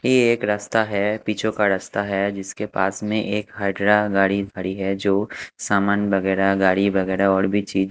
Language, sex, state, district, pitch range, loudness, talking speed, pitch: Hindi, male, Haryana, Charkhi Dadri, 95-105 Hz, -21 LUFS, 175 wpm, 100 Hz